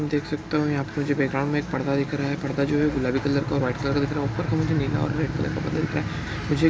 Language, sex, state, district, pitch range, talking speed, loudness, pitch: Hindi, male, Bihar, Bhagalpur, 140-150 Hz, 360 wpm, -25 LUFS, 145 Hz